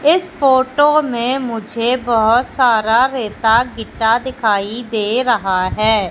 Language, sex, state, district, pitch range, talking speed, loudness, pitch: Hindi, female, Madhya Pradesh, Katni, 220-260 Hz, 120 wpm, -15 LUFS, 235 Hz